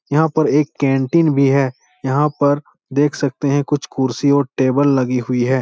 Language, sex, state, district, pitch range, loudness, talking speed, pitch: Hindi, male, Bihar, Supaul, 130-145 Hz, -17 LUFS, 225 wpm, 140 Hz